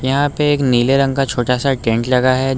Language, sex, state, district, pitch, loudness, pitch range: Hindi, male, Uttar Pradesh, Lucknow, 130 Hz, -15 LUFS, 125-135 Hz